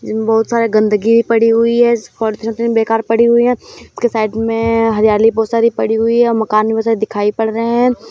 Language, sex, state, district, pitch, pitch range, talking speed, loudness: Hindi, female, Uttar Pradesh, Muzaffarnagar, 225 Hz, 220-230 Hz, 205 wpm, -13 LUFS